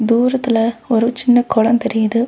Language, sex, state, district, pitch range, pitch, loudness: Tamil, female, Tamil Nadu, Nilgiris, 225-245 Hz, 235 Hz, -15 LUFS